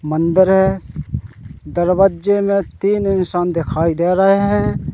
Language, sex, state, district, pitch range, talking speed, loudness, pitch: Hindi, male, Madhya Pradesh, Katni, 175-195 Hz, 120 wpm, -16 LUFS, 185 Hz